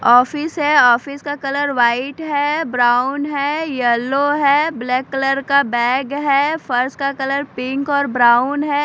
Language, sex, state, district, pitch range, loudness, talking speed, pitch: Hindi, female, Maharashtra, Mumbai Suburban, 250-290 Hz, -17 LUFS, 155 wpm, 275 Hz